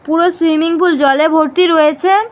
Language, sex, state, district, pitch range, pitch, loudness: Bengali, female, West Bengal, Alipurduar, 310-360 Hz, 325 Hz, -12 LUFS